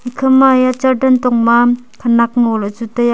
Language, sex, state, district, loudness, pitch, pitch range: Wancho, female, Arunachal Pradesh, Longding, -12 LUFS, 245 Hz, 235-255 Hz